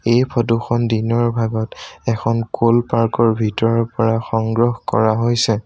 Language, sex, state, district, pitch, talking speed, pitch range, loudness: Assamese, male, Assam, Sonitpur, 115 Hz, 150 wpm, 115-120 Hz, -18 LUFS